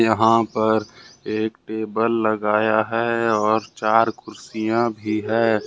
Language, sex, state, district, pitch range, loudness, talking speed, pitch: Hindi, male, Jharkhand, Ranchi, 110-115 Hz, -21 LUFS, 115 wpm, 110 Hz